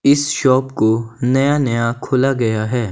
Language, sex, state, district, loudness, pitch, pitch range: Hindi, male, Himachal Pradesh, Shimla, -16 LUFS, 125 Hz, 115-135 Hz